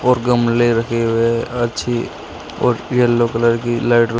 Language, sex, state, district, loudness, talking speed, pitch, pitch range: Hindi, male, Uttar Pradesh, Shamli, -17 LUFS, 155 wpm, 120 Hz, 115-120 Hz